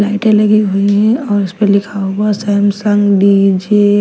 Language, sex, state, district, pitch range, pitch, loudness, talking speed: Hindi, female, Punjab, Kapurthala, 200-210 Hz, 205 Hz, -12 LUFS, 165 wpm